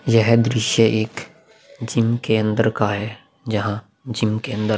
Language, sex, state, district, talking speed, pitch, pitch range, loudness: Hindi, male, Bihar, Vaishali, 165 wpm, 110 Hz, 110-115 Hz, -20 LUFS